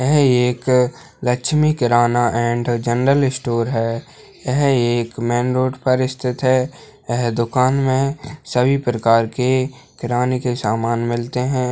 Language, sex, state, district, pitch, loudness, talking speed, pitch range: Hindi, male, Bihar, Jahanabad, 125 Hz, -18 LUFS, 135 wpm, 120-130 Hz